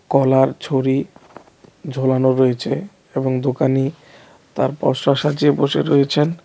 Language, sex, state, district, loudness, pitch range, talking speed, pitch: Bengali, male, Tripura, West Tripura, -18 LUFS, 130-150 Hz, 110 wpm, 135 Hz